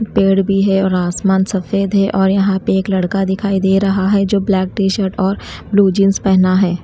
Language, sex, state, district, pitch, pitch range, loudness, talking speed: Hindi, female, Himachal Pradesh, Shimla, 195 Hz, 190-195 Hz, -14 LUFS, 220 wpm